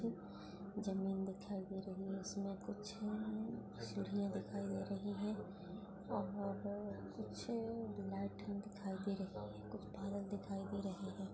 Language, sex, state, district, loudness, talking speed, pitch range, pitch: Hindi, female, Goa, North and South Goa, -45 LUFS, 125 wpm, 195-205 Hz, 195 Hz